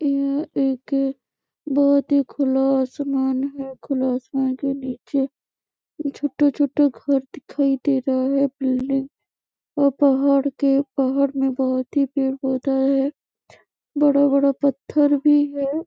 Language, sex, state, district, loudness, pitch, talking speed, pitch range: Hindi, female, Chhattisgarh, Bastar, -21 LUFS, 275 Hz, 115 wpm, 265-280 Hz